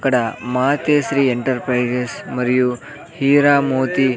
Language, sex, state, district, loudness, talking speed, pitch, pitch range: Telugu, male, Andhra Pradesh, Sri Satya Sai, -17 LUFS, 115 wpm, 130 Hz, 125-140 Hz